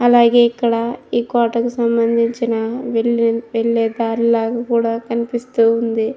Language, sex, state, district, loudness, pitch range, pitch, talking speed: Telugu, female, Andhra Pradesh, Krishna, -17 LUFS, 230-235 Hz, 235 Hz, 105 wpm